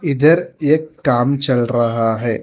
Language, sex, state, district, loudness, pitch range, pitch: Hindi, female, Telangana, Hyderabad, -16 LUFS, 120-155 Hz, 140 Hz